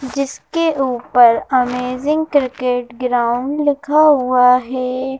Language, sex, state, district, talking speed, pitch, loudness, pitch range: Hindi, female, Madhya Pradesh, Bhopal, 90 wpm, 255 Hz, -16 LUFS, 250-285 Hz